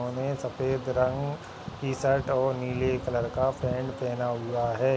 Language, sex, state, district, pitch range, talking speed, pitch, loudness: Hindi, male, Uttarakhand, Tehri Garhwal, 125-135 Hz, 135 wpm, 130 Hz, -29 LUFS